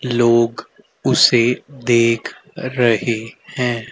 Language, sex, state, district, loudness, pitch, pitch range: Hindi, male, Haryana, Rohtak, -17 LUFS, 120 Hz, 115-125 Hz